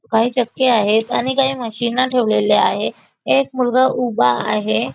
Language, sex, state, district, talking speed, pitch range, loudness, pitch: Marathi, female, Maharashtra, Nagpur, 145 wpm, 220-255 Hz, -17 LUFS, 240 Hz